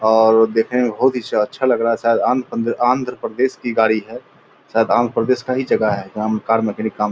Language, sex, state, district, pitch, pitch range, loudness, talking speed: Angika, male, Bihar, Purnia, 115 Hz, 110-125 Hz, -18 LUFS, 225 wpm